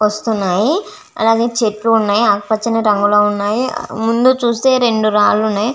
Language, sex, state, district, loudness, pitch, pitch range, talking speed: Telugu, female, Andhra Pradesh, Visakhapatnam, -14 LUFS, 225 Hz, 210-240 Hz, 145 wpm